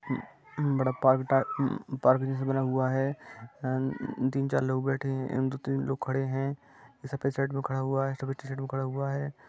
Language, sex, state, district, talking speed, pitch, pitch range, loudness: Hindi, male, Jharkhand, Sahebganj, 175 wpm, 135 Hz, 130-135 Hz, -30 LUFS